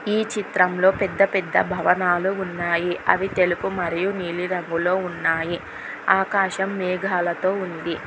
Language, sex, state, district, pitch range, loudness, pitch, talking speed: Telugu, female, Telangana, Hyderabad, 175-195 Hz, -22 LUFS, 180 Hz, 110 wpm